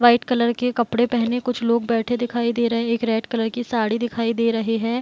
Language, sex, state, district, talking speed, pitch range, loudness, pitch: Hindi, female, Bihar, Gopalganj, 275 wpm, 230-240 Hz, -21 LUFS, 235 Hz